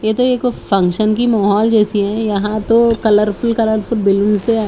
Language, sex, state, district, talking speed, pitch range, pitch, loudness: Hindi, female, Haryana, Charkhi Dadri, 180 wpm, 205-230 Hz, 215 Hz, -14 LUFS